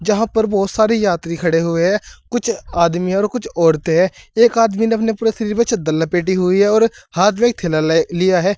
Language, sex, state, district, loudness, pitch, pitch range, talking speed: Hindi, male, Uttar Pradesh, Saharanpur, -16 LUFS, 200 Hz, 170-225 Hz, 225 wpm